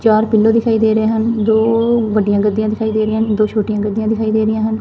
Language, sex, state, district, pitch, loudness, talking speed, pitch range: Punjabi, female, Punjab, Fazilka, 220 Hz, -15 LUFS, 250 wpm, 215-220 Hz